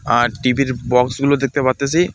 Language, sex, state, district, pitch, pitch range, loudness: Bengali, male, West Bengal, Alipurduar, 130 Hz, 125-140 Hz, -17 LUFS